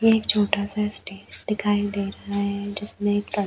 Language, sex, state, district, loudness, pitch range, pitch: Hindi, female, Chhattisgarh, Bastar, -24 LUFS, 200-210 Hz, 205 Hz